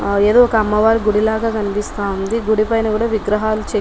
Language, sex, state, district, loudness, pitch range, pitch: Telugu, female, Telangana, Nalgonda, -16 LUFS, 210-220 Hz, 215 Hz